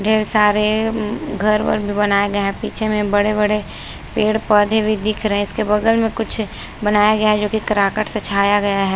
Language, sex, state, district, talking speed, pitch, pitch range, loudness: Hindi, female, Maharashtra, Chandrapur, 215 wpm, 210 Hz, 205-215 Hz, -17 LUFS